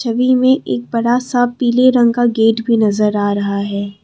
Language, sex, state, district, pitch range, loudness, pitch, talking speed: Hindi, female, Assam, Kamrup Metropolitan, 210-245 Hz, -14 LUFS, 235 Hz, 210 wpm